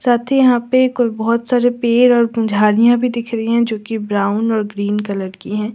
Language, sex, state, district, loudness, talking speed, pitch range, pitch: Hindi, female, Delhi, New Delhi, -15 LUFS, 230 wpm, 210-245 Hz, 230 Hz